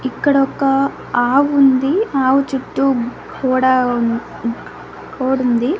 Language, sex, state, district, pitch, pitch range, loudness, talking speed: Telugu, female, Andhra Pradesh, Annamaya, 260 Hz, 245-275 Hz, -16 LUFS, 70 wpm